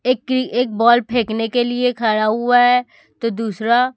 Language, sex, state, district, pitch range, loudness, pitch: Hindi, female, Chhattisgarh, Raipur, 225-250 Hz, -17 LUFS, 240 Hz